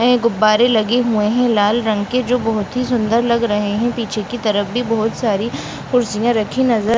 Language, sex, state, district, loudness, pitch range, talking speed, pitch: Hindi, female, Bihar, Bhagalpur, -17 LUFS, 215-240 Hz, 215 wpm, 230 Hz